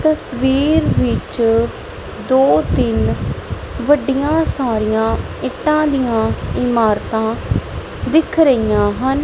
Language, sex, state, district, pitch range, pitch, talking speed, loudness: Punjabi, female, Punjab, Kapurthala, 225-295 Hz, 260 Hz, 80 wpm, -16 LUFS